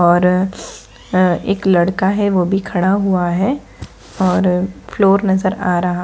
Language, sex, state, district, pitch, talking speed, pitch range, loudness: Hindi, female, Bihar, Jahanabad, 190 Hz, 150 wpm, 180-195 Hz, -16 LUFS